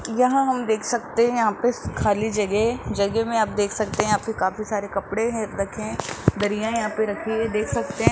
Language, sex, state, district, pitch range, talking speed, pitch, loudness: Hindi, female, Rajasthan, Jaipur, 210-230 Hz, 235 wpm, 220 Hz, -23 LUFS